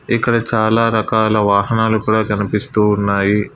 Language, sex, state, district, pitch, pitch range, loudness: Telugu, male, Telangana, Hyderabad, 110 Hz, 105-110 Hz, -15 LUFS